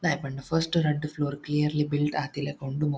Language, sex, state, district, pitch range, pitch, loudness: Tulu, male, Karnataka, Dakshina Kannada, 145-150 Hz, 150 Hz, -28 LUFS